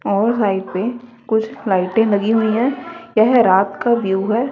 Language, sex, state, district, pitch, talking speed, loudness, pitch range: Hindi, female, Haryana, Rohtak, 220 Hz, 175 wpm, -17 LUFS, 200-240 Hz